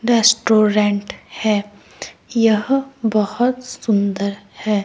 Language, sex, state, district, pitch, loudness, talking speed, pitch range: Hindi, female, Himachal Pradesh, Shimla, 215 Hz, -18 LUFS, 75 wpm, 205-235 Hz